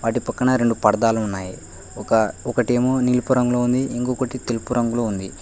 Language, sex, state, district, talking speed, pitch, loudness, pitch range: Telugu, male, Telangana, Hyderabad, 135 wpm, 120 Hz, -20 LUFS, 115-125 Hz